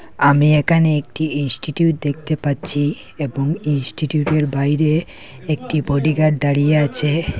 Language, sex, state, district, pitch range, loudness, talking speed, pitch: Bengali, male, Assam, Hailakandi, 145-155 Hz, -18 LUFS, 105 wpm, 150 Hz